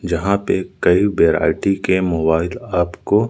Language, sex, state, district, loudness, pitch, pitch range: Hindi, male, Madhya Pradesh, Umaria, -17 LUFS, 95 Hz, 85-100 Hz